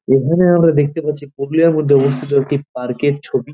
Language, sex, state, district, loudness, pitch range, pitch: Bengali, male, West Bengal, Purulia, -15 LUFS, 140-155 Hz, 145 Hz